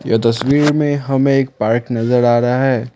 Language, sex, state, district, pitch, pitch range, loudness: Hindi, male, Assam, Kamrup Metropolitan, 125 Hz, 120-135 Hz, -15 LUFS